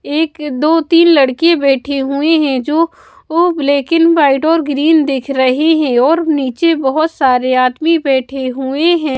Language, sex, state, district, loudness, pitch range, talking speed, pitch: Hindi, female, Bihar, West Champaran, -12 LUFS, 270-325 Hz, 165 wpm, 290 Hz